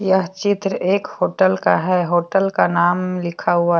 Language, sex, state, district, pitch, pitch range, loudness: Hindi, female, Jharkhand, Deoghar, 185 Hz, 175-195 Hz, -18 LUFS